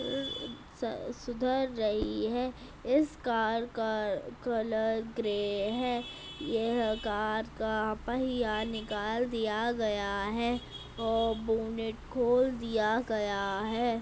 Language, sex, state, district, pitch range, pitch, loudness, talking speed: Hindi, female, Uttar Pradesh, Budaun, 215-240 Hz, 225 Hz, -32 LUFS, 105 wpm